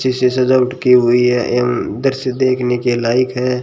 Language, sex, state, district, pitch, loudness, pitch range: Hindi, male, Rajasthan, Bikaner, 125 Hz, -15 LUFS, 125-130 Hz